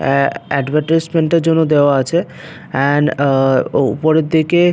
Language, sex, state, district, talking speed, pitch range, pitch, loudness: Bengali, male, West Bengal, Paschim Medinipur, 140 wpm, 140-165 Hz, 150 Hz, -14 LUFS